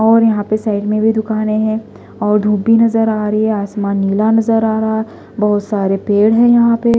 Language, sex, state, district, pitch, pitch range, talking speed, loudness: Hindi, female, Delhi, New Delhi, 215 Hz, 210-225 Hz, 240 wpm, -14 LUFS